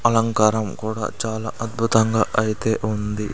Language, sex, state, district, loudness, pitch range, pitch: Telugu, male, Andhra Pradesh, Sri Satya Sai, -21 LUFS, 110-115 Hz, 110 Hz